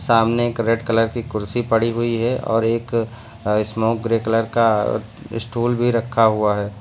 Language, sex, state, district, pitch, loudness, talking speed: Hindi, male, Uttar Pradesh, Lucknow, 115 Hz, -20 LUFS, 175 wpm